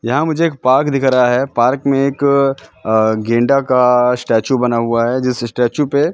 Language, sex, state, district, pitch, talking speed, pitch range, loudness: Hindi, male, Madhya Pradesh, Katni, 125 Hz, 205 wpm, 120-140 Hz, -14 LUFS